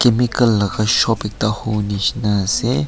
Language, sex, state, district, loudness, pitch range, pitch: Nagamese, male, Nagaland, Kohima, -17 LUFS, 100-120 Hz, 110 Hz